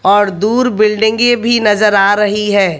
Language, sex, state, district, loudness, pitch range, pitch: Hindi, male, Haryana, Jhajjar, -11 LUFS, 205-220 Hz, 210 Hz